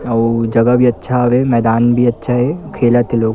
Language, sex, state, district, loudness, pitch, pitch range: Chhattisgarhi, male, Chhattisgarh, Kabirdham, -13 LUFS, 120 Hz, 115-125 Hz